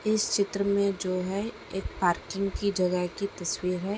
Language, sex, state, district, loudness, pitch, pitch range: Hindi, male, Bihar, Bhagalpur, -29 LUFS, 195 Hz, 180-200 Hz